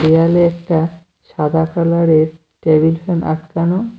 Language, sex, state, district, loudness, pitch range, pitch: Bengali, male, West Bengal, Cooch Behar, -15 LUFS, 160-170 Hz, 165 Hz